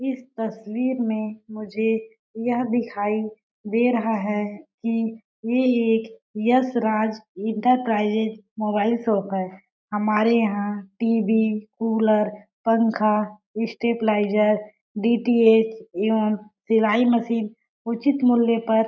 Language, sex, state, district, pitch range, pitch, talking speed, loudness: Hindi, female, Chhattisgarh, Balrampur, 215-230 Hz, 220 Hz, 100 wpm, -22 LUFS